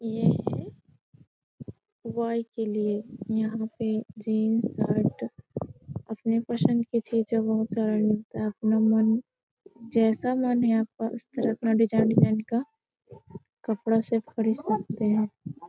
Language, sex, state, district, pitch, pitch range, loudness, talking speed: Hindi, female, Bihar, Jamui, 225 Hz, 215-230 Hz, -27 LUFS, 130 wpm